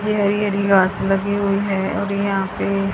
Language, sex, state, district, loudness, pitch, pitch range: Hindi, female, Haryana, Rohtak, -19 LUFS, 200 Hz, 195-200 Hz